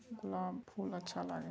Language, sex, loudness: Angika, male, -42 LUFS